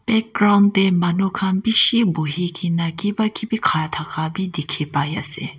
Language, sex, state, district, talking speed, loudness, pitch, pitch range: Nagamese, female, Nagaland, Kohima, 170 wpm, -18 LUFS, 190 Hz, 165-210 Hz